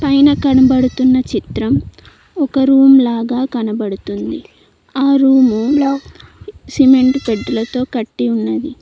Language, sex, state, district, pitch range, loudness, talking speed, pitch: Telugu, female, Telangana, Mahabubabad, 235-275 Hz, -13 LUFS, 95 wpm, 260 Hz